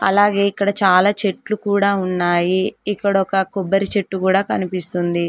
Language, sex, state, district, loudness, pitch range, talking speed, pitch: Telugu, female, Telangana, Mahabubabad, -18 LUFS, 185-200 Hz, 135 wpm, 195 Hz